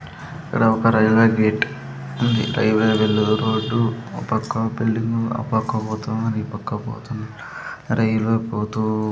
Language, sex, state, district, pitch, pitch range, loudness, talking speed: Telugu, male, Andhra Pradesh, Sri Satya Sai, 110 Hz, 110-115 Hz, -20 LUFS, 130 wpm